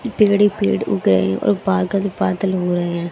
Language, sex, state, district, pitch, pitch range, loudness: Hindi, female, Haryana, Rohtak, 190 Hz, 175-200 Hz, -18 LUFS